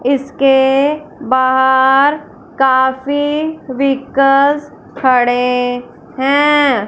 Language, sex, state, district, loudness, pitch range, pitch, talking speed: Hindi, female, Punjab, Fazilka, -13 LUFS, 260-285 Hz, 270 Hz, 50 wpm